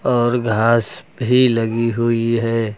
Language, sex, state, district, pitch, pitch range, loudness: Hindi, male, Uttar Pradesh, Lucknow, 115 Hz, 115-120 Hz, -17 LUFS